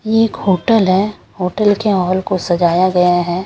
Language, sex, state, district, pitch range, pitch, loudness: Hindi, female, Chhattisgarh, Raipur, 180-210 Hz, 185 Hz, -14 LUFS